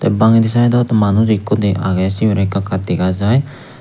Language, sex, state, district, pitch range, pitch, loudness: Chakma, male, Tripura, Unakoti, 100-115 Hz, 105 Hz, -14 LUFS